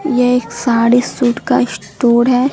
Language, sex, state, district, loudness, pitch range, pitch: Hindi, female, Bihar, Katihar, -14 LUFS, 235-250 Hz, 245 Hz